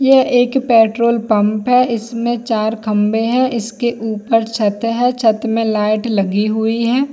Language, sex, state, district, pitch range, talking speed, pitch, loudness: Hindi, female, Jharkhand, Jamtara, 220-240 Hz, 160 wpm, 230 Hz, -15 LUFS